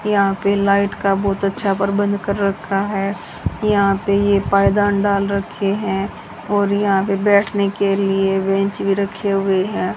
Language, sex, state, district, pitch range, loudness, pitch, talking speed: Hindi, female, Haryana, Charkhi Dadri, 195-200 Hz, -18 LUFS, 200 Hz, 170 wpm